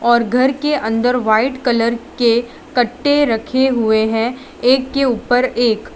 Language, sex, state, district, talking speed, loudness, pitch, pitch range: Hindi, female, Gujarat, Valsad, 150 wpm, -16 LUFS, 245 Hz, 230-260 Hz